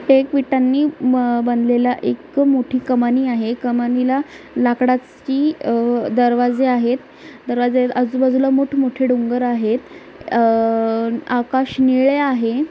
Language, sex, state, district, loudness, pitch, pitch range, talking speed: Marathi, female, Maharashtra, Nagpur, -17 LUFS, 250 Hz, 240-265 Hz, 105 wpm